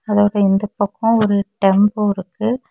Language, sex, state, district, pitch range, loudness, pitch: Tamil, female, Tamil Nadu, Kanyakumari, 200-215 Hz, -17 LUFS, 205 Hz